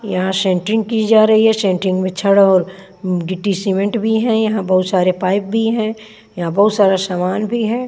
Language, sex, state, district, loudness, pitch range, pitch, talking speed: Hindi, female, Bihar, Patna, -15 LUFS, 185-220 Hz, 200 Hz, 200 wpm